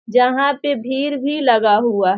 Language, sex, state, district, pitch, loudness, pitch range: Hindi, female, Bihar, Sitamarhi, 250 Hz, -17 LUFS, 225-285 Hz